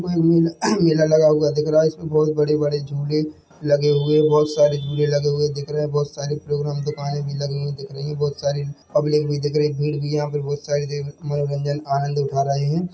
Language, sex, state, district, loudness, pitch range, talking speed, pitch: Hindi, male, Chhattisgarh, Bilaspur, -21 LUFS, 145-150 Hz, 245 wpm, 145 Hz